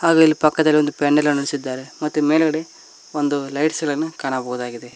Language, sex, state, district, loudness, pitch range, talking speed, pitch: Kannada, male, Karnataka, Koppal, -19 LUFS, 140-155 Hz, 145 wpm, 150 Hz